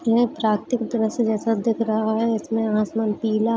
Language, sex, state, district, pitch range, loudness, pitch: Hindi, female, Uttar Pradesh, Jalaun, 220-230 Hz, -22 LUFS, 225 Hz